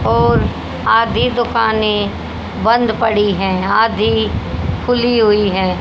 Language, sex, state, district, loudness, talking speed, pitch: Hindi, female, Haryana, Rohtak, -15 LUFS, 105 wpm, 205 Hz